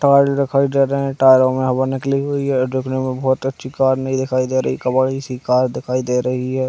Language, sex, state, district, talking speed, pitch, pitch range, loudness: Hindi, male, Chhattisgarh, Raigarh, 260 wpm, 130 Hz, 130-135 Hz, -17 LUFS